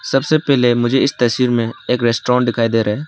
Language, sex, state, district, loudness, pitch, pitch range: Hindi, male, Arunachal Pradesh, Lower Dibang Valley, -16 LUFS, 125 Hz, 115-130 Hz